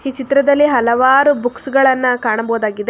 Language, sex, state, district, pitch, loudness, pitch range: Kannada, female, Karnataka, Bangalore, 260 Hz, -14 LUFS, 235-275 Hz